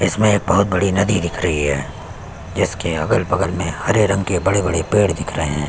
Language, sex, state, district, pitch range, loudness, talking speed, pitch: Hindi, male, Chhattisgarh, Sukma, 80-100 Hz, -18 LUFS, 200 wpm, 95 Hz